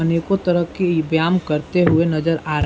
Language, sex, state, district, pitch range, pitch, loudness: Hindi, male, Bihar, Saran, 160-175 Hz, 165 Hz, -18 LUFS